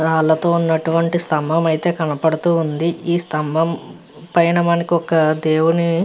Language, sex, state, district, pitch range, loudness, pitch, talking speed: Telugu, female, Andhra Pradesh, Visakhapatnam, 160-170 Hz, -17 LUFS, 165 Hz, 130 wpm